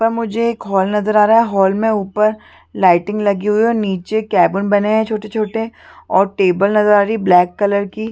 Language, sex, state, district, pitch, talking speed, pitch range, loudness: Hindi, female, Chhattisgarh, Bastar, 210 Hz, 235 wpm, 195-220 Hz, -15 LUFS